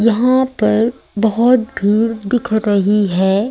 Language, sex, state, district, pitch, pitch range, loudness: Hindi, female, Madhya Pradesh, Umaria, 220 Hz, 205-235 Hz, -15 LUFS